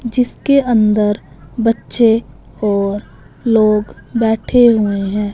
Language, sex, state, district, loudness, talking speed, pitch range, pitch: Hindi, male, Punjab, Fazilka, -15 LUFS, 90 wpm, 210-235 Hz, 220 Hz